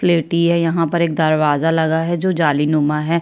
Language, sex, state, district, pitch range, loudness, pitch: Hindi, female, Chhattisgarh, Kabirdham, 155-170 Hz, -16 LUFS, 165 Hz